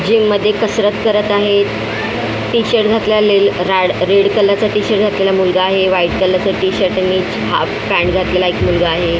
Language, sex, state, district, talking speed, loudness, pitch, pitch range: Marathi, female, Maharashtra, Mumbai Suburban, 155 wpm, -13 LUFS, 195 Hz, 185-210 Hz